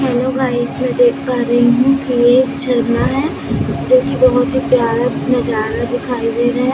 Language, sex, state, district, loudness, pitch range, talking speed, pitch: Hindi, female, Chhattisgarh, Raipur, -15 LUFS, 245-260 Hz, 195 wpm, 250 Hz